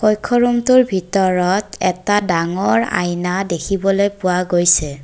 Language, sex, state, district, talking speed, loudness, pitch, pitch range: Assamese, female, Assam, Kamrup Metropolitan, 105 wpm, -16 LUFS, 190 Hz, 180-205 Hz